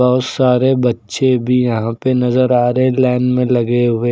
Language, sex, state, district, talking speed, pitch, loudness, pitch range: Hindi, male, Uttar Pradesh, Lucknow, 190 wpm, 125 Hz, -14 LUFS, 120-130 Hz